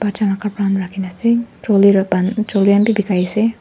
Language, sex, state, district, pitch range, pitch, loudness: Nagamese, female, Nagaland, Dimapur, 195-215 Hz, 200 Hz, -16 LUFS